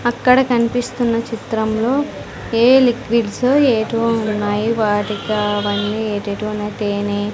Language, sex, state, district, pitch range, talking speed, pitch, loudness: Telugu, female, Andhra Pradesh, Sri Satya Sai, 210-240 Hz, 100 wpm, 220 Hz, -17 LUFS